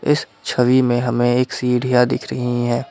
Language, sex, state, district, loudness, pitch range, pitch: Hindi, male, Assam, Kamrup Metropolitan, -18 LUFS, 120-125 Hz, 125 Hz